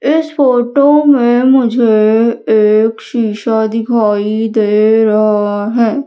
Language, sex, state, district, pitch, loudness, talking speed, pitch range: Hindi, female, Madhya Pradesh, Umaria, 225 Hz, -11 LUFS, 100 wpm, 215-245 Hz